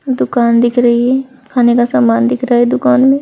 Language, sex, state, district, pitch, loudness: Hindi, female, Uttar Pradesh, Saharanpur, 240 Hz, -12 LUFS